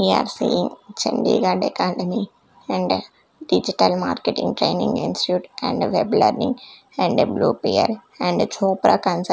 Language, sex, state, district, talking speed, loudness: English, female, Chandigarh, Chandigarh, 130 wpm, -20 LUFS